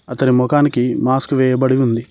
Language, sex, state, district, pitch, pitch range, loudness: Telugu, male, Telangana, Mahabubabad, 130 Hz, 125-135 Hz, -15 LUFS